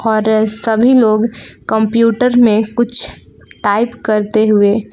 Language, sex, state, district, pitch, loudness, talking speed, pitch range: Hindi, female, Jharkhand, Palamu, 220 Hz, -13 LUFS, 110 wpm, 215-230 Hz